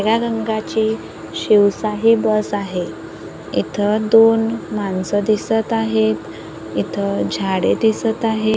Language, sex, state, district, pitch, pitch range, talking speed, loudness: Marathi, female, Maharashtra, Gondia, 205 Hz, 135-220 Hz, 100 wpm, -18 LUFS